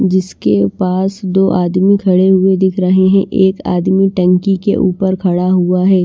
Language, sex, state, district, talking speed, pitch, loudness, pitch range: Hindi, female, Maharashtra, Washim, 170 wpm, 185 Hz, -12 LUFS, 180-190 Hz